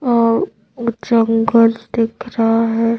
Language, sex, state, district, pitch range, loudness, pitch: Hindi, female, Madhya Pradesh, Bhopal, 225-235 Hz, -16 LUFS, 230 Hz